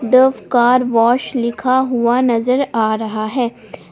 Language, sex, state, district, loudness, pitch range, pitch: Hindi, female, Jharkhand, Palamu, -15 LUFS, 230-255 Hz, 240 Hz